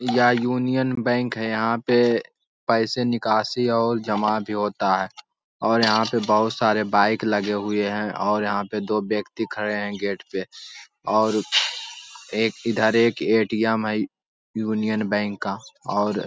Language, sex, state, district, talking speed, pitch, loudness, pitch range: Hindi, male, Bihar, Araria, 160 wpm, 110 Hz, -22 LUFS, 105-115 Hz